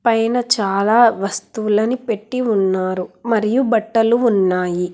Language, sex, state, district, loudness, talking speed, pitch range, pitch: Telugu, female, Telangana, Hyderabad, -17 LUFS, 95 wpm, 195-235 Hz, 220 Hz